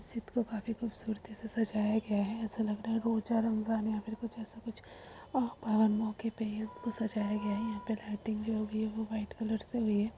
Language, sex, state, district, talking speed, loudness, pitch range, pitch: Hindi, female, Uttar Pradesh, Jalaun, 200 wpm, -35 LUFS, 215-225 Hz, 220 Hz